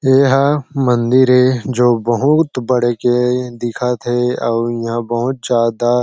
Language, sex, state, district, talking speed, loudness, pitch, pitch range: Chhattisgarhi, male, Chhattisgarh, Sarguja, 130 wpm, -15 LUFS, 125 Hz, 120-130 Hz